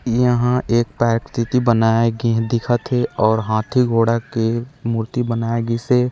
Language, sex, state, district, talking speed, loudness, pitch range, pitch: Chhattisgarhi, male, Chhattisgarh, Raigarh, 155 wpm, -18 LUFS, 115-120 Hz, 115 Hz